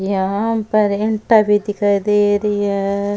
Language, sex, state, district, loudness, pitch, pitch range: Rajasthani, female, Rajasthan, Churu, -16 LUFS, 205 Hz, 200-210 Hz